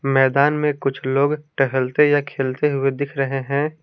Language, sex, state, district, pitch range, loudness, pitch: Hindi, male, Jharkhand, Palamu, 135-150 Hz, -20 LUFS, 140 Hz